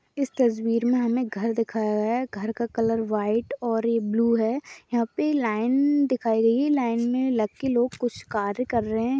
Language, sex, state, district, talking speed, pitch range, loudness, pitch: Hindi, female, Uttarakhand, Tehri Garhwal, 190 wpm, 225-255 Hz, -24 LUFS, 235 Hz